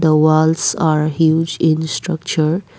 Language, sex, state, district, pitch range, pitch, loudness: English, female, Assam, Kamrup Metropolitan, 155-165 Hz, 160 Hz, -16 LUFS